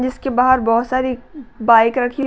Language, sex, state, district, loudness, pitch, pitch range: Hindi, female, Uttar Pradesh, Gorakhpur, -16 LUFS, 255 Hz, 235-260 Hz